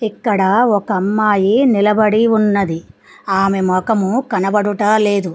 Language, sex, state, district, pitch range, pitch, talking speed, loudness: Telugu, female, Telangana, Mahabubabad, 195-215 Hz, 205 Hz, 90 wpm, -15 LUFS